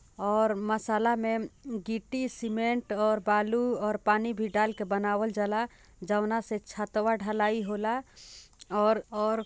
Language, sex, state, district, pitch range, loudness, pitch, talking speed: Bhojpuri, female, Bihar, Gopalganj, 210-225 Hz, -29 LUFS, 215 Hz, 135 wpm